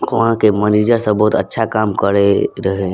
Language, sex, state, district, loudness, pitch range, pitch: Maithili, male, Bihar, Madhepura, -15 LUFS, 100-110 Hz, 105 Hz